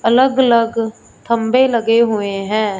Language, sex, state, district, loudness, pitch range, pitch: Hindi, female, Punjab, Fazilka, -15 LUFS, 215-235 Hz, 230 Hz